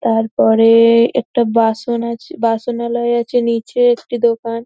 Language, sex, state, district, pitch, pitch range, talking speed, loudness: Bengali, female, West Bengal, North 24 Parganas, 235 Hz, 230-240 Hz, 130 wpm, -15 LUFS